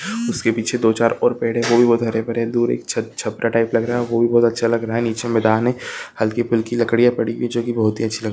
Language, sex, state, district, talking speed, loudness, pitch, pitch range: Hindi, male, Chhattisgarh, Bilaspur, 290 wpm, -19 LUFS, 115 Hz, 115-120 Hz